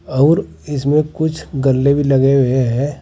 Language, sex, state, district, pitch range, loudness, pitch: Hindi, male, Uttar Pradesh, Saharanpur, 135-150 Hz, -15 LUFS, 140 Hz